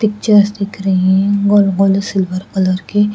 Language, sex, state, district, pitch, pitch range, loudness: Hindi, female, Haryana, Rohtak, 200 Hz, 190-205 Hz, -14 LUFS